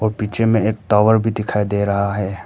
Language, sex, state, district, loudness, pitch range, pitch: Hindi, male, Arunachal Pradesh, Papum Pare, -17 LUFS, 100-110 Hz, 105 Hz